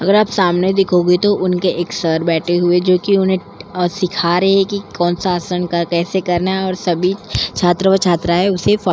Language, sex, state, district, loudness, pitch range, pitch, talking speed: Hindi, female, Delhi, New Delhi, -15 LUFS, 175-195 Hz, 180 Hz, 210 wpm